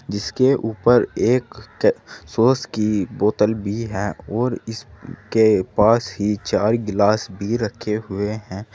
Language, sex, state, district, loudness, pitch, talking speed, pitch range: Hindi, male, Uttar Pradesh, Saharanpur, -20 LUFS, 110 Hz, 130 wpm, 105-115 Hz